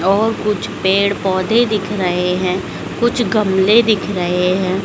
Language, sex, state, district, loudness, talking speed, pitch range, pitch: Hindi, female, Madhya Pradesh, Dhar, -16 LUFS, 150 wpm, 185-215 Hz, 195 Hz